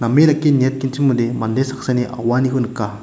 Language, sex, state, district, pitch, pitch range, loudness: Garo, male, Meghalaya, West Garo Hills, 130 Hz, 120-135 Hz, -17 LUFS